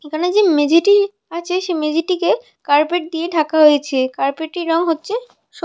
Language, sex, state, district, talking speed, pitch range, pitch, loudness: Bengali, female, West Bengal, North 24 Parganas, 180 wpm, 305-365 Hz, 330 Hz, -17 LUFS